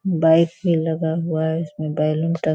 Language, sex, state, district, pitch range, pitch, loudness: Hindi, female, Bihar, Sitamarhi, 160-165 Hz, 160 Hz, -20 LUFS